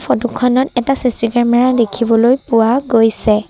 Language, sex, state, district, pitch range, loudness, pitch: Assamese, female, Assam, Sonitpur, 225-250 Hz, -13 LUFS, 240 Hz